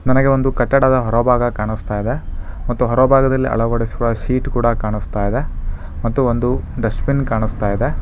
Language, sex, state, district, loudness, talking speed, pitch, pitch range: Kannada, male, Karnataka, Bangalore, -17 LUFS, 135 wpm, 120 Hz, 105-130 Hz